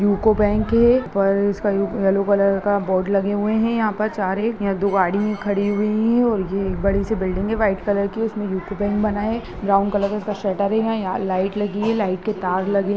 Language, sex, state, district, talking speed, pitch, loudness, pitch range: Hindi, female, Bihar, Muzaffarpur, 245 wpm, 205 Hz, -20 LUFS, 195-215 Hz